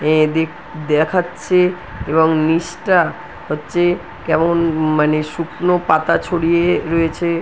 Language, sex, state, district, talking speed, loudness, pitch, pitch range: Bengali, female, West Bengal, North 24 Parganas, 105 wpm, -17 LUFS, 165 Hz, 155-175 Hz